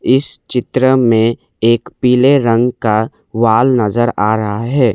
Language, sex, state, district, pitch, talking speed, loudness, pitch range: Hindi, male, Assam, Kamrup Metropolitan, 120 Hz, 145 wpm, -13 LUFS, 110-130 Hz